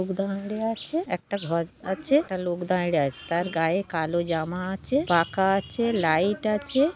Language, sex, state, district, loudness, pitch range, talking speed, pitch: Bengali, female, West Bengal, Jhargram, -26 LUFS, 170-215 Hz, 165 wpm, 190 Hz